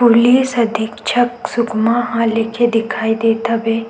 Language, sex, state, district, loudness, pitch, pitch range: Chhattisgarhi, female, Chhattisgarh, Sukma, -16 LUFS, 230 Hz, 225-240 Hz